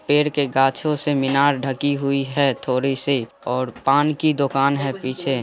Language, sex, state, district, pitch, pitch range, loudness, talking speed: Hindi, male, Bihar, Saran, 140 Hz, 135-145 Hz, -20 LUFS, 165 wpm